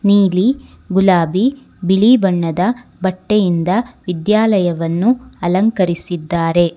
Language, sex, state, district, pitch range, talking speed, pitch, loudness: Kannada, female, Karnataka, Bangalore, 175-220 Hz, 60 wpm, 190 Hz, -15 LUFS